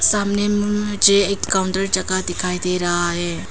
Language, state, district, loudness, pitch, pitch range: Hindi, Arunachal Pradesh, Papum Pare, -18 LUFS, 190 Hz, 180-205 Hz